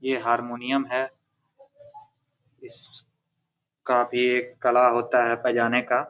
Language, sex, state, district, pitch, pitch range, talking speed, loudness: Hindi, male, Jharkhand, Jamtara, 130 Hz, 125-150 Hz, 110 wpm, -23 LUFS